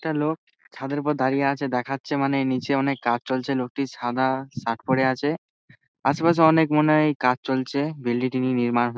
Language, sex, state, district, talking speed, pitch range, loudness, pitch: Bengali, male, West Bengal, Dakshin Dinajpur, 180 wpm, 125-145 Hz, -23 LUFS, 135 Hz